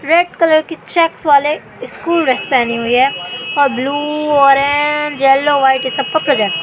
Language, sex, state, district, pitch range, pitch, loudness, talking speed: Hindi, female, Madhya Pradesh, Katni, 260-300 Hz, 285 Hz, -13 LUFS, 170 wpm